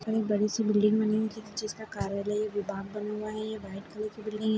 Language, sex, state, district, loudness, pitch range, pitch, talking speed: Hindi, male, Chhattisgarh, Bastar, -31 LUFS, 210-215 Hz, 215 Hz, 250 wpm